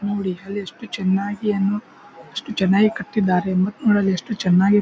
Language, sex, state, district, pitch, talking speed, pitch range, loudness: Kannada, male, Karnataka, Bijapur, 200 Hz, 135 wpm, 190-210 Hz, -21 LUFS